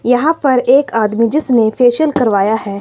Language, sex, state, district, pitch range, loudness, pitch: Hindi, female, Himachal Pradesh, Shimla, 220-275 Hz, -13 LUFS, 245 Hz